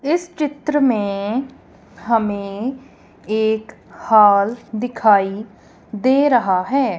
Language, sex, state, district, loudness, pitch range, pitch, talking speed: Hindi, female, Punjab, Kapurthala, -18 LUFS, 205-265 Hz, 220 Hz, 85 wpm